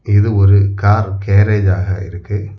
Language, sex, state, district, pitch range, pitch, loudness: Tamil, male, Tamil Nadu, Kanyakumari, 95-105 Hz, 100 Hz, -14 LUFS